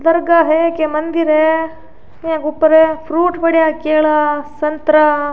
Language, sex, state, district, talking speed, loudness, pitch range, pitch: Rajasthani, female, Rajasthan, Churu, 125 wpm, -14 LUFS, 305-325 Hz, 315 Hz